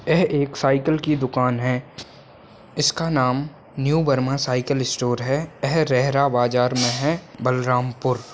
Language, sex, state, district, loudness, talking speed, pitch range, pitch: Hindi, male, Chhattisgarh, Balrampur, -21 LUFS, 135 wpm, 125-145 Hz, 135 Hz